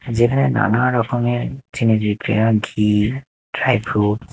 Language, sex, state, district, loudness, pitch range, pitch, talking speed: Bengali, male, Odisha, Nuapada, -18 LUFS, 110-130 Hz, 120 Hz, 85 wpm